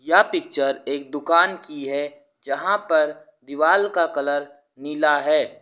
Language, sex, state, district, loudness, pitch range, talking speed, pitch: Hindi, male, Uttar Pradesh, Lucknow, -21 LUFS, 145-170 Hz, 140 wpm, 150 Hz